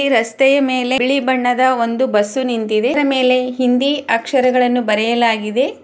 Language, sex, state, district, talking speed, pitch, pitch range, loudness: Kannada, female, Karnataka, Chamarajanagar, 135 wpm, 255 Hz, 235-265 Hz, -15 LUFS